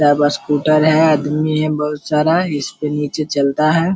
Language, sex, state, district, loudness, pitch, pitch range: Hindi, male, Bihar, Araria, -16 LUFS, 150 Hz, 145-155 Hz